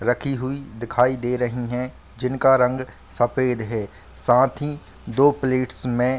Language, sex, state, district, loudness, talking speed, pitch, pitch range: Hindi, male, Bihar, Gopalganj, -22 LUFS, 155 wpm, 125 Hz, 120-130 Hz